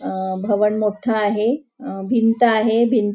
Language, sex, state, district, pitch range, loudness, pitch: Marathi, female, Maharashtra, Nagpur, 205-235 Hz, -19 LUFS, 220 Hz